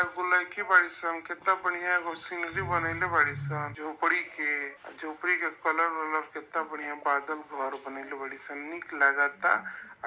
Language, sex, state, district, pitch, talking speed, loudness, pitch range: Bhojpuri, male, Uttar Pradesh, Varanasi, 160 Hz, 180 wpm, -29 LUFS, 145-175 Hz